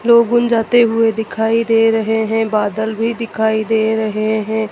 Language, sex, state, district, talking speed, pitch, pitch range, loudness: Hindi, female, Madhya Pradesh, Dhar, 155 wpm, 220 Hz, 220-230 Hz, -15 LUFS